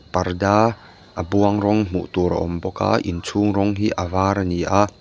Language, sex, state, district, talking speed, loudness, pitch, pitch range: Mizo, male, Mizoram, Aizawl, 215 wpm, -20 LUFS, 100 Hz, 90-105 Hz